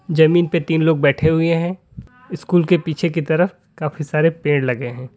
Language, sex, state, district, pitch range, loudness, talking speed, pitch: Hindi, male, Uttar Pradesh, Lalitpur, 155-175 Hz, -18 LUFS, 200 wpm, 160 Hz